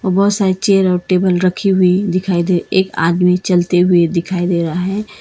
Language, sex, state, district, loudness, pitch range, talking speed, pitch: Hindi, female, Karnataka, Bangalore, -14 LUFS, 180-190 Hz, 205 wpm, 185 Hz